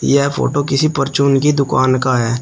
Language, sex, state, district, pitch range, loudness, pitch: Hindi, male, Uttar Pradesh, Shamli, 130-140 Hz, -15 LUFS, 140 Hz